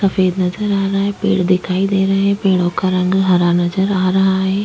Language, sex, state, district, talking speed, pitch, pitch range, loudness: Hindi, female, Chhattisgarh, Sukma, 235 wpm, 190 Hz, 185-195 Hz, -15 LUFS